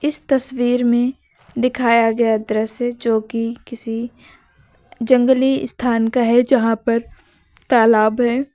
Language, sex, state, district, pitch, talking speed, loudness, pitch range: Hindi, female, Uttar Pradesh, Lucknow, 240 Hz, 120 wpm, -17 LUFS, 230-250 Hz